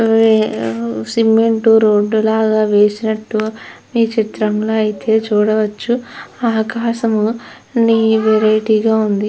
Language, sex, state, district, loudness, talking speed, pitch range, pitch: Telugu, female, Andhra Pradesh, Chittoor, -15 LUFS, 105 wpm, 215-225 Hz, 220 Hz